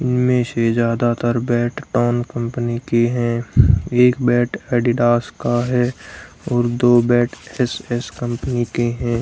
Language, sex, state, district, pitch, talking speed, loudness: Hindi, male, Haryana, Rohtak, 120 Hz, 130 wpm, -18 LUFS